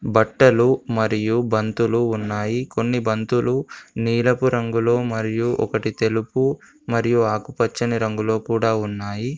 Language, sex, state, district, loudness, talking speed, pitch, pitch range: Telugu, male, Telangana, Komaram Bheem, -21 LUFS, 100 wpm, 115 Hz, 110-120 Hz